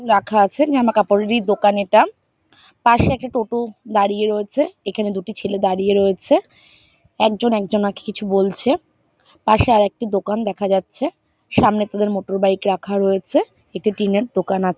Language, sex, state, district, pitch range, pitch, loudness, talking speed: Bengali, female, West Bengal, North 24 Parganas, 200-235 Hz, 205 Hz, -18 LUFS, 130 wpm